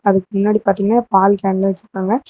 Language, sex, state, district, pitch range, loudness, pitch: Tamil, female, Tamil Nadu, Namakkal, 195-215 Hz, -16 LUFS, 200 Hz